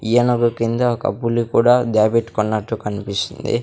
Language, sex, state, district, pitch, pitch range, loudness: Telugu, male, Andhra Pradesh, Sri Satya Sai, 115 Hz, 110-120 Hz, -18 LUFS